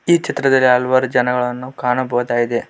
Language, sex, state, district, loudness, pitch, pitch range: Kannada, male, Karnataka, Koppal, -16 LUFS, 125 Hz, 125-130 Hz